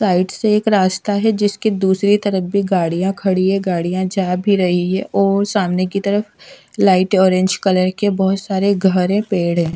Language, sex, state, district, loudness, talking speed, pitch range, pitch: Hindi, female, Odisha, Sambalpur, -16 LUFS, 190 wpm, 185-200 Hz, 190 Hz